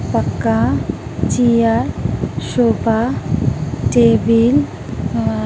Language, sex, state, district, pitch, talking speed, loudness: Hindi, female, Uttar Pradesh, Hamirpur, 120 Hz, 65 wpm, -16 LUFS